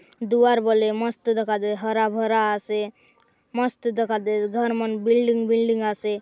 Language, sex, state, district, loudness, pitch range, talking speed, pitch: Halbi, female, Chhattisgarh, Bastar, -22 LUFS, 215-235 Hz, 155 wpm, 225 Hz